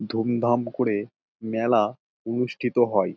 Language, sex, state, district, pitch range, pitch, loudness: Bengali, male, West Bengal, Dakshin Dinajpur, 105-120 Hz, 115 Hz, -25 LUFS